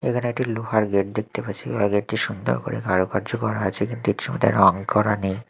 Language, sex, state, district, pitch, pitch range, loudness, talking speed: Bengali, male, Odisha, Malkangiri, 105 Hz, 100-110 Hz, -23 LUFS, 220 wpm